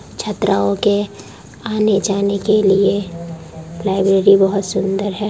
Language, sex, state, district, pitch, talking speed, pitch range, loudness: Hindi, female, Bihar, Darbhanga, 200 Hz, 100 wpm, 185-205 Hz, -16 LUFS